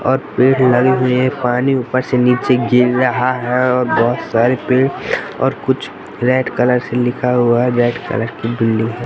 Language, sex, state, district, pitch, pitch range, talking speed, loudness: Hindi, male, Madhya Pradesh, Katni, 125 Hz, 120-130 Hz, 190 wpm, -15 LUFS